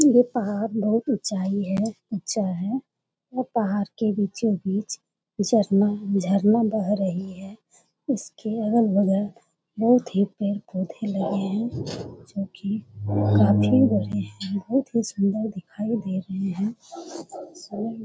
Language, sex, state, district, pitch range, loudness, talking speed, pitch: Hindi, female, Bihar, Jamui, 195-225 Hz, -24 LUFS, 120 wpm, 205 Hz